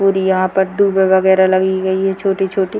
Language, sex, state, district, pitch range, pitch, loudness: Hindi, female, Bihar, Purnia, 190-195 Hz, 190 Hz, -14 LUFS